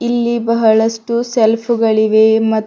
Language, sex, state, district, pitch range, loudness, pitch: Kannada, female, Karnataka, Bidar, 220-235 Hz, -13 LUFS, 225 Hz